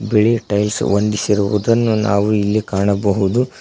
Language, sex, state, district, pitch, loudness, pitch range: Kannada, male, Karnataka, Koppal, 105 Hz, -16 LUFS, 100-110 Hz